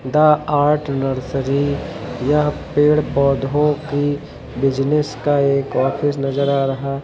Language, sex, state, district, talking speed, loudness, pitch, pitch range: Hindi, male, Uttar Pradesh, Lucknow, 120 wpm, -18 LUFS, 140 Hz, 135-150 Hz